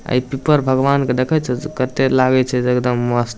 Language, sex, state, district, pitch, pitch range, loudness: Maithili, male, Bihar, Samastipur, 130 Hz, 125-135 Hz, -17 LUFS